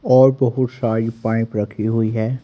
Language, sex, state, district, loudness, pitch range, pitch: Hindi, male, Haryana, Rohtak, -19 LUFS, 110-130 Hz, 115 Hz